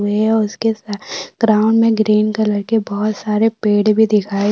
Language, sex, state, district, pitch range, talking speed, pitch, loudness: Hindi, female, Maharashtra, Aurangabad, 210-220 Hz, 200 wpm, 215 Hz, -16 LUFS